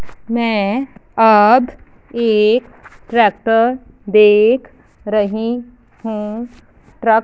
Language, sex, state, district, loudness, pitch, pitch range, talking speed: Hindi, female, Punjab, Fazilka, -15 LUFS, 225 Hz, 210-235 Hz, 75 wpm